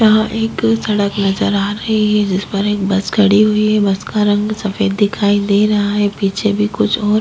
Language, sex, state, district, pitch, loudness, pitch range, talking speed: Hindi, female, Bihar, Vaishali, 205 Hz, -15 LUFS, 200-215 Hz, 225 wpm